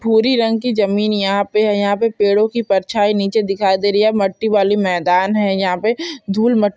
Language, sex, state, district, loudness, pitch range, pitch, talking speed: Hindi, female, Chhattisgarh, Bilaspur, -16 LUFS, 195-220 Hz, 205 Hz, 220 wpm